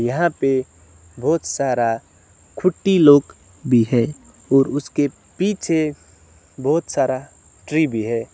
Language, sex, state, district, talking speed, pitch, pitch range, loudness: Hindi, male, West Bengal, Alipurduar, 115 wpm, 135 Hz, 115-150 Hz, -19 LUFS